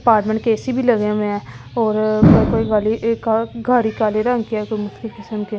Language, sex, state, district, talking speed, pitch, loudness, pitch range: Hindi, female, Delhi, New Delhi, 205 wpm, 220 Hz, -18 LUFS, 215-230 Hz